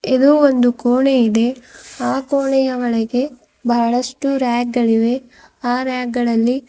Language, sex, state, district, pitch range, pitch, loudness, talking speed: Kannada, female, Karnataka, Bidar, 240-265 Hz, 250 Hz, -17 LUFS, 125 wpm